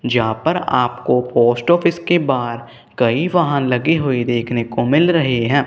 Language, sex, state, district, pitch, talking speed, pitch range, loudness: Hindi, male, Punjab, Kapurthala, 125 Hz, 170 wpm, 120-160 Hz, -17 LUFS